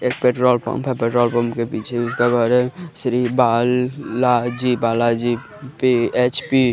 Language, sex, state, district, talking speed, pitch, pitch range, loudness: Hindi, male, Bihar, West Champaran, 170 wpm, 125 Hz, 120-125 Hz, -19 LUFS